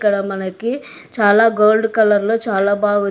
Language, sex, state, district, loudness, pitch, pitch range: Telugu, female, Telangana, Hyderabad, -16 LUFS, 210 Hz, 200-225 Hz